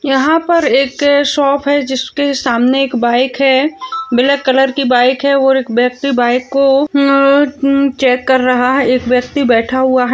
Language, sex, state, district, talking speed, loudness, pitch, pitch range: Hindi, female, Chhattisgarh, Kabirdham, 185 wpm, -12 LUFS, 270 Hz, 255-280 Hz